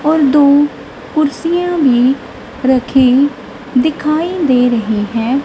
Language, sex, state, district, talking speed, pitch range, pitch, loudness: Hindi, female, Punjab, Kapurthala, 100 wpm, 250-300 Hz, 270 Hz, -13 LUFS